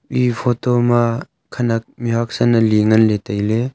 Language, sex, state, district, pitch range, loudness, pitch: Wancho, male, Arunachal Pradesh, Longding, 110-120 Hz, -17 LUFS, 120 Hz